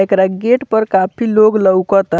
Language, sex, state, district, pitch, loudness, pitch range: Bhojpuri, male, Bihar, Muzaffarpur, 195 Hz, -13 LUFS, 190-220 Hz